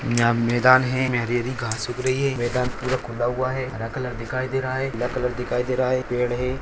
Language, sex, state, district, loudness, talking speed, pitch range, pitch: Hindi, male, Bihar, Purnia, -23 LUFS, 255 wpm, 120-130 Hz, 125 Hz